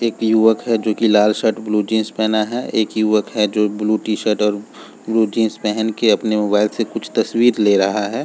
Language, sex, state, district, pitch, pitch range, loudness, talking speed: Hindi, male, Jharkhand, Jamtara, 110 Hz, 105-110 Hz, -17 LUFS, 225 wpm